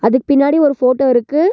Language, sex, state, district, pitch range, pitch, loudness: Tamil, female, Tamil Nadu, Nilgiris, 255-295 Hz, 275 Hz, -13 LUFS